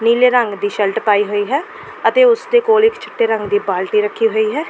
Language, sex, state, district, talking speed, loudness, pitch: Punjabi, female, Delhi, New Delhi, 245 wpm, -15 LUFS, 230 Hz